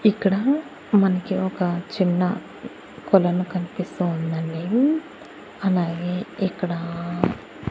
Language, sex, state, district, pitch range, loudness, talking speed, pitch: Telugu, female, Andhra Pradesh, Annamaya, 175-195 Hz, -23 LUFS, 70 wpm, 185 Hz